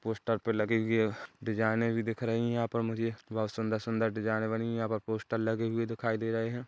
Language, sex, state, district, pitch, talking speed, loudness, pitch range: Hindi, male, Chhattisgarh, Kabirdham, 115 Hz, 240 wpm, -32 LUFS, 110-115 Hz